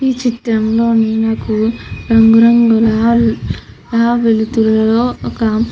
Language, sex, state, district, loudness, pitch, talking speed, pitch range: Telugu, female, Andhra Pradesh, Krishna, -13 LUFS, 225 Hz, 95 wpm, 220-235 Hz